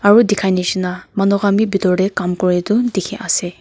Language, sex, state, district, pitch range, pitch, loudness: Nagamese, female, Nagaland, Kohima, 180-205 Hz, 195 Hz, -16 LUFS